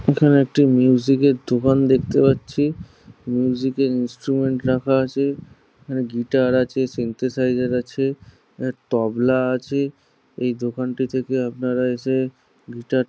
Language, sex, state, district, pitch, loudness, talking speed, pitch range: Bengali, male, West Bengal, Jhargram, 130 Hz, -20 LUFS, 110 wpm, 125-135 Hz